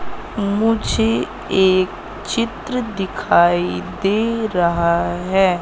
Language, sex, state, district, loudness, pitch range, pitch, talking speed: Hindi, female, Madhya Pradesh, Katni, -18 LUFS, 170-220 Hz, 190 Hz, 75 wpm